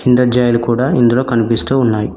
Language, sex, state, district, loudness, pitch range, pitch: Telugu, male, Telangana, Mahabubabad, -13 LUFS, 115-125 Hz, 120 Hz